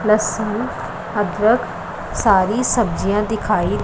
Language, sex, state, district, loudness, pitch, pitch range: Hindi, female, Punjab, Pathankot, -19 LUFS, 215 Hz, 205-220 Hz